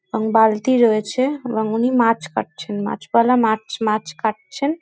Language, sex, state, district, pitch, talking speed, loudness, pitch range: Bengali, female, West Bengal, North 24 Parganas, 225 Hz, 135 wpm, -19 LUFS, 215-250 Hz